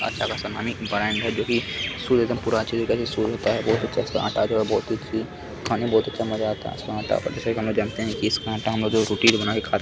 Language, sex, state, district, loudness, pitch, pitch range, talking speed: Hindi, male, Bihar, Kishanganj, -24 LUFS, 110 Hz, 110-115 Hz, 185 wpm